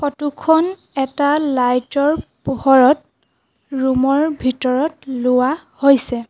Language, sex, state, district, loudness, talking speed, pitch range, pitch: Assamese, female, Assam, Sonitpur, -17 LUFS, 75 wpm, 255-295 Hz, 275 Hz